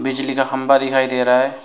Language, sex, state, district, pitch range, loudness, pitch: Hindi, male, West Bengal, Alipurduar, 130-135 Hz, -17 LUFS, 135 Hz